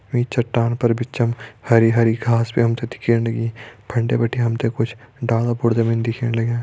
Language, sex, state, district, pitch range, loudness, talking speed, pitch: Hindi, male, Uttarakhand, Tehri Garhwal, 115-120 Hz, -20 LUFS, 200 wpm, 115 Hz